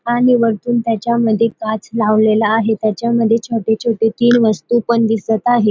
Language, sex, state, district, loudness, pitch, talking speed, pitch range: Marathi, female, Maharashtra, Dhule, -15 LUFS, 225 Hz, 145 wpm, 220-235 Hz